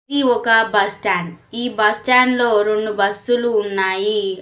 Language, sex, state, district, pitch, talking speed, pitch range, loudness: Telugu, female, Telangana, Mahabubabad, 215 Hz, 120 wpm, 200-240 Hz, -17 LUFS